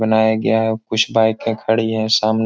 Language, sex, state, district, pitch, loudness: Hindi, male, Bihar, Jahanabad, 110 Hz, -17 LUFS